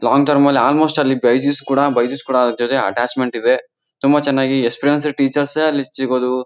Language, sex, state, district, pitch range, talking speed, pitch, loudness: Kannada, male, Karnataka, Dharwad, 125-145 Hz, 150 wpm, 135 Hz, -16 LUFS